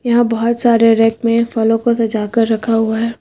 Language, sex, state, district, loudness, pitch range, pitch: Hindi, female, Uttar Pradesh, Lucknow, -14 LUFS, 225-235 Hz, 230 Hz